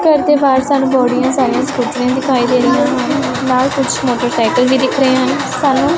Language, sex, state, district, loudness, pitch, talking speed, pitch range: Punjabi, female, Punjab, Pathankot, -13 LUFS, 260 Hz, 170 wpm, 255-275 Hz